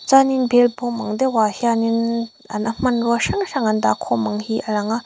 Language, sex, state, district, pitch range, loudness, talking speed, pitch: Mizo, female, Mizoram, Aizawl, 215-245 Hz, -19 LUFS, 215 wpm, 230 Hz